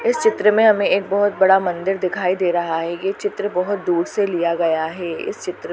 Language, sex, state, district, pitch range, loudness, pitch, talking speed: Hindi, female, Chhattisgarh, Bastar, 175-205 Hz, -19 LUFS, 190 Hz, 230 wpm